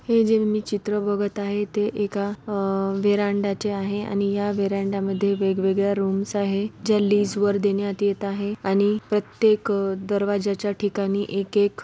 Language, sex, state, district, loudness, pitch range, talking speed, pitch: Marathi, female, Maharashtra, Solapur, -23 LUFS, 200-205 Hz, 140 wpm, 205 Hz